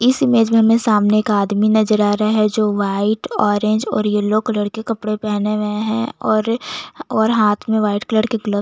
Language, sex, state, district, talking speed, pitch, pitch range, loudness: Hindi, female, Chhattisgarh, Jashpur, 195 wpm, 215 Hz, 210-220 Hz, -17 LUFS